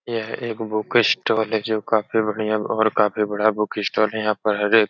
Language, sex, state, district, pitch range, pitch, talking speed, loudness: Hindi, male, Uttar Pradesh, Etah, 105-110 Hz, 110 Hz, 230 wpm, -21 LUFS